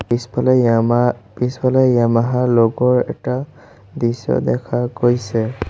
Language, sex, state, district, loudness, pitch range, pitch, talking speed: Assamese, male, Assam, Sonitpur, -17 LUFS, 115-125 Hz, 120 Hz, 95 wpm